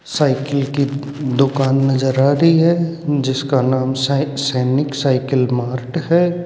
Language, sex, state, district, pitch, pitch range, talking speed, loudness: Hindi, male, Rajasthan, Jaipur, 140 Hz, 130-145 Hz, 130 wpm, -17 LUFS